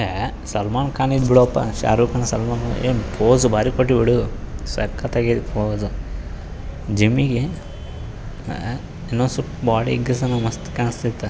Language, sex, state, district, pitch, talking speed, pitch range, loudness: Kannada, male, Karnataka, Bijapur, 120 Hz, 135 wpm, 105-125 Hz, -20 LUFS